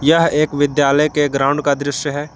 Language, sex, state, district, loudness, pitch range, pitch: Hindi, male, Jharkhand, Garhwa, -16 LUFS, 145-150 Hz, 145 Hz